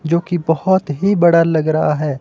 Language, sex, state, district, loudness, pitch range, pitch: Hindi, male, Himachal Pradesh, Shimla, -15 LUFS, 155-175 Hz, 165 Hz